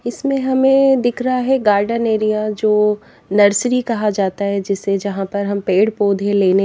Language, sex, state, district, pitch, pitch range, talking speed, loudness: Hindi, female, Haryana, Jhajjar, 210 Hz, 200-245 Hz, 170 wpm, -16 LUFS